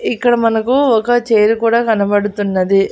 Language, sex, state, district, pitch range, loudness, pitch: Telugu, female, Andhra Pradesh, Annamaya, 205-240 Hz, -14 LUFS, 225 Hz